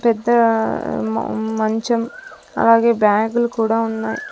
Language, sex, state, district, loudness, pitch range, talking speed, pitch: Telugu, female, Andhra Pradesh, Sri Satya Sai, -18 LUFS, 220-235 Hz, 110 wpm, 225 Hz